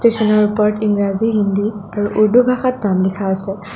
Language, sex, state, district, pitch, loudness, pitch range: Assamese, female, Assam, Sonitpur, 210 Hz, -16 LUFS, 200-220 Hz